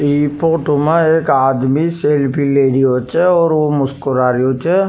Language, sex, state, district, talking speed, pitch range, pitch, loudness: Rajasthani, male, Rajasthan, Nagaur, 160 wpm, 135-165 Hz, 145 Hz, -14 LUFS